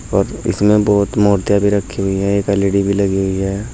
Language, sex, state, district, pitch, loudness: Hindi, male, Uttar Pradesh, Saharanpur, 100 Hz, -15 LUFS